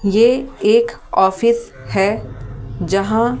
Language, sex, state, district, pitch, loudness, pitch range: Hindi, female, Delhi, New Delhi, 210 Hz, -17 LUFS, 190-235 Hz